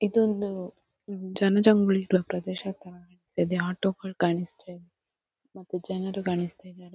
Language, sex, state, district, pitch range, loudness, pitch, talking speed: Kannada, female, Karnataka, Dakshina Kannada, 180-195 Hz, -27 LUFS, 185 Hz, 105 wpm